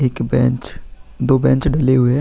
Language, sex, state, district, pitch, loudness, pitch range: Hindi, male, Uttar Pradesh, Jalaun, 130 Hz, -16 LUFS, 125-135 Hz